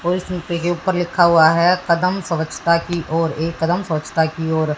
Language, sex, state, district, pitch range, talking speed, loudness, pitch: Hindi, female, Haryana, Jhajjar, 160-175 Hz, 190 wpm, -18 LUFS, 170 Hz